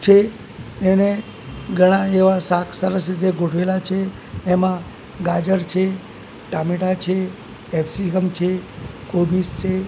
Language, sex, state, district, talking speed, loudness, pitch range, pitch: Gujarati, male, Gujarat, Gandhinagar, 110 wpm, -20 LUFS, 180-190 Hz, 185 Hz